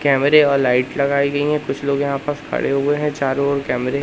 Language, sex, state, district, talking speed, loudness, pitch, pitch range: Hindi, male, Madhya Pradesh, Katni, 255 wpm, -18 LUFS, 140 Hz, 135-145 Hz